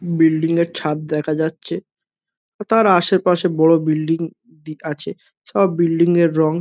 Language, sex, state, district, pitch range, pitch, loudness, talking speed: Bengali, male, West Bengal, Kolkata, 155-175 Hz, 165 Hz, -17 LUFS, 125 wpm